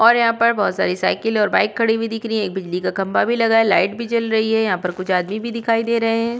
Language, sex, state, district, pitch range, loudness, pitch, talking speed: Hindi, female, Uttar Pradesh, Budaun, 200-230 Hz, -18 LUFS, 225 Hz, 320 wpm